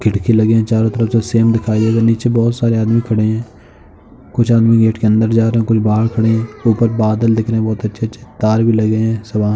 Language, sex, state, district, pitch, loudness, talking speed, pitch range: Hindi, male, Uttar Pradesh, Jalaun, 110 Hz, -14 LUFS, 240 wpm, 110-115 Hz